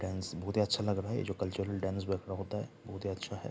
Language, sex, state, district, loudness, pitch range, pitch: Hindi, male, Bihar, Saharsa, -36 LUFS, 95-105 Hz, 100 Hz